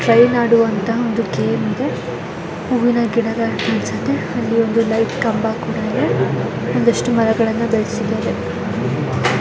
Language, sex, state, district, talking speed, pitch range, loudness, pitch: Kannada, female, Karnataka, Gulbarga, 110 wpm, 225-235 Hz, -18 LUFS, 230 Hz